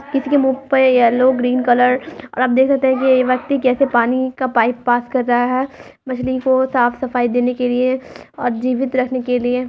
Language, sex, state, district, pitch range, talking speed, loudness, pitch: Hindi, female, Bihar, Muzaffarpur, 245-265 Hz, 200 wpm, -16 LUFS, 255 Hz